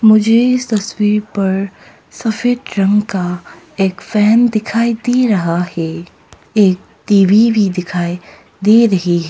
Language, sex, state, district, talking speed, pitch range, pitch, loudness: Hindi, female, Arunachal Pradesh, Papum Pare, 125 wpm, 185-225 Hz, 210 Hz, -14 LUFS